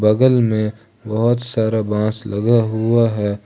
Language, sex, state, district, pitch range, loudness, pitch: Hindi, male, Jharkhand, Ranchi, 105-115 Hz, -17 LUFS, 110 Hz